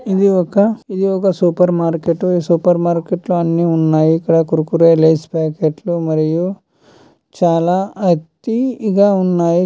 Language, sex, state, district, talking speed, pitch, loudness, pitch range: Telugu, female, Andhra Pradesh, Chittoor, 145 wpm, 175 Hz, -15 LUFS, 165-190 Hz